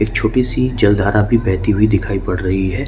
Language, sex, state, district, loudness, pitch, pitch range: Hindi, male, Jharkhand, Ranchi, -16 LUFS, 105 Hz, 95-115 Hz